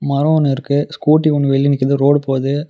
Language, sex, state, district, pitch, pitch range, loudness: Tamil, male, Tamil Nadu, Namakkal, 140 Hz, 140-145 Hz, -15 LUFS